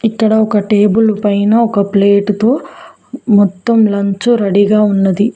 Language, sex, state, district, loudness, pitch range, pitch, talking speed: Telugu, female, Telangana, Mahabubabad, -12 LUFS, 200-225 Hz, 210 Hz, 110 wpm